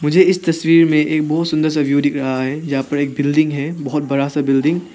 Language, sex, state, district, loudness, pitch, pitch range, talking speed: Hindi, male, Arunachal Pradesh, Papum Pare, -16 LUFS, 150 Hz, 140-155 Hz, 265 wpm